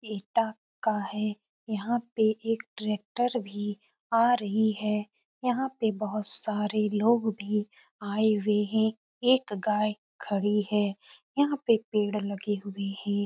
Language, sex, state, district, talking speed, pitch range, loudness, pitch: Hindi, female, Uttar Pradesh, Etah, 135 wpm, 205-225 Hz, -29 LUFS, 215 Hz